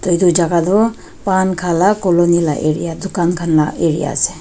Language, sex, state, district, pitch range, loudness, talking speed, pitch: Nagamese, female, Nagaland, Dimapur, 165-185 Hz, -15 LUFS, 190 wpm, 175 Hz